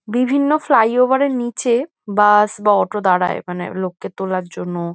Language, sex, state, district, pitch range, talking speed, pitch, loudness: Bengali, female, West Bengal, North 24 Parganas, 185-250 Hz, 145 wpm, 210 Hz, -17 LUFS